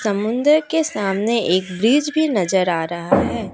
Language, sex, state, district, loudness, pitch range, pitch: Hindi, female, Assam, Kamrup Metropolitan, -18 LUFS, 185-290 Hz, 210 Hz